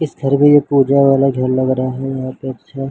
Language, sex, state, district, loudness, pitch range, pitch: Hindi, male, Jharkhand, Jamtara, -14 LUFS, 130-140 Hz, 135 Hz